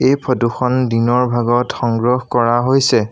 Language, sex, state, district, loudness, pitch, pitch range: Assamese, male, Assam, Sonitpur, -15 LUFS, 120 Hz, 120-130 Hz